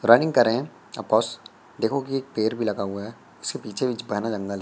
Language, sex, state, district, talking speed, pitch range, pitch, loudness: Hindi, male, Madhya Pradesh, Katni, 245 wpm, 105-120 Hz, 110 Hz, -25 LUFS